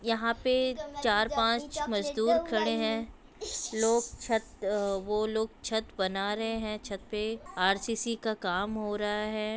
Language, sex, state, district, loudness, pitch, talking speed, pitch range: Hindi, female, Bihar, Sitamarhi, -30 LUFS, 220 Hz, 145 wpm, 210-230 Hz